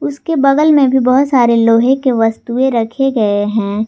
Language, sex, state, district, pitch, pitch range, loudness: Hindi, female, Jharkhand, Garhwa, 250 Hz, 225-270 Hz, -12 LUFS